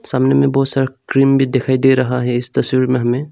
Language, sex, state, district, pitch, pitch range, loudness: Hindi, male, Arunachal Pradesh, Longding, 130 Hz, 130-135 Hz, -14 LUFS